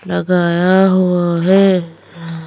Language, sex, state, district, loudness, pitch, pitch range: Hindi, female, Madhya Pradesh, Bhopal, -13 LUFS, 175 Hz, 170-185 Hz